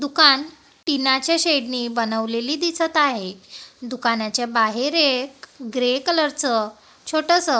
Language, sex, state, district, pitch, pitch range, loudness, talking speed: Marathi, female, Maharashtra, Gondia, 265 Hz, 235-305 Hz, -20 LUFS, 125 wpm